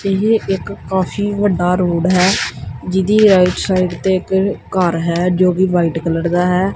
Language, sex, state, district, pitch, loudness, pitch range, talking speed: Punjabi, male, Punjab, Kapurthala, 185 Hz, -15 LUFS, 180-195 Hz, 170 wpm